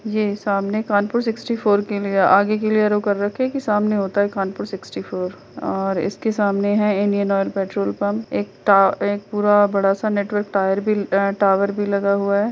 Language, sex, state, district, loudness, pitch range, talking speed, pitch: Hindi, female, Uttar Pradesh, Hamirpur, -20 LUFS, 195-210 Hz, 170 wpm, 205 Hz